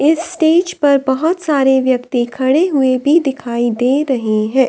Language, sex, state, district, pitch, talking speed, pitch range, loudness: Hindi, female, Delhi, New Delhi, 270 Hz, 165 wpm, 255-315 Hz, -14 LUFS